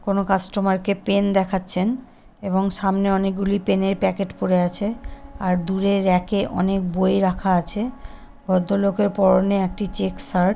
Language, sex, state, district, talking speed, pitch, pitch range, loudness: Bengali, female, West Bengal, Kolkata, 140 wpm, 195 Hz, 185-200 Hz, -19 LUFS